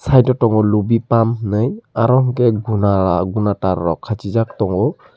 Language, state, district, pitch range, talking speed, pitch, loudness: Kokborok, Tripura, Dhalai, 100-120 Hz, 175 wpm, 110 Hz, -16 LUFS